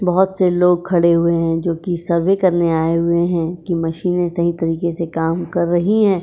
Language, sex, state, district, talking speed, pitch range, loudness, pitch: Hindi, female, Uttar Pradesh, Etah, 200 wpm, 170-180 Hz, -17 LUFS, 170 Hz